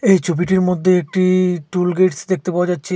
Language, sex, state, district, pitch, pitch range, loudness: Bengali, male, Assam, Hailakandi, 180 Hz, 180-185 Hz, -17 LUFS